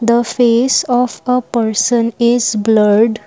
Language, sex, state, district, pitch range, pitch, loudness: English, female, Assam, Kamrup Metropolitan, 220-245 Hz, 235 Hz, -13 LUFS